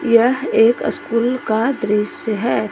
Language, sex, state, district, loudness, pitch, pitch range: Hindi, female, Jharkhand, Ranchi, -17 LUFS, 230 Hz, 215-245 Hz